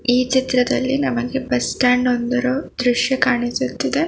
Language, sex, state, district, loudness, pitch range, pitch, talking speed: Kannada, female, Karnataka, Bangalore, -19 LUFS, 245-260 Hz, 250 Hz, 115 wpm